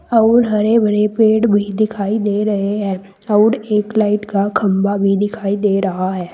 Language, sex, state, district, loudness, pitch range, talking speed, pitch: Hindi, female, Uttar Pradesh, Saharanpur, -16 LUFS, 200-215 Hz, 180 wpm, 210 Hz